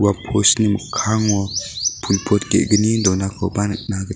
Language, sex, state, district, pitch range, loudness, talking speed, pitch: Garo, male, Meghalaya, West Garo Hills, 95-105 Hz, -18 LUFS, 130 wpm, 105 Hz